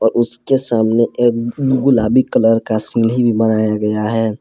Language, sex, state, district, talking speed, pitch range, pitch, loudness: Hindi, male, Jharkhand, Palamu, 150 wpm, 110-120 Hz, 115 Hz, -14 LUFS